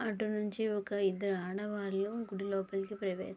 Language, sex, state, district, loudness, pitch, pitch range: Telugu, female, Andhra Pradesh, Guntur, -36 LUFS, 200 Hz, 195-210 Hz